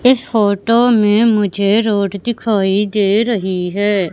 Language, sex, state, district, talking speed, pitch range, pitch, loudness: Hindi, female, Madhya Pradesh, Katni, 130 wpm, 200-230 Hz, 205 Hz, -14 LUFS